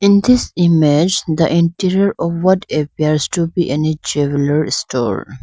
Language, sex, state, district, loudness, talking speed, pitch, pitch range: English, female, Arunachal Pradesh, Lower Dibang Valley, -15 LUFS, 145 wpm, 165 Hz, 155-185 Hz